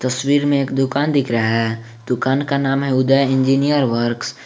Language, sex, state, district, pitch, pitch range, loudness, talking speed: Hindi, male, Jharkhand, Garhwa, 135 Hz, 120-140 Hz, -17 LUFS, 200 wpm